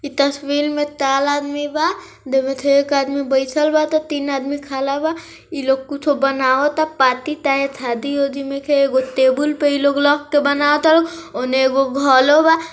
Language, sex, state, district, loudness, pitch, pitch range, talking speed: Hindi, female, Bihar, East Champaran, -17 LUFS, 285 Hz, 270-295 Hz, 200 wpm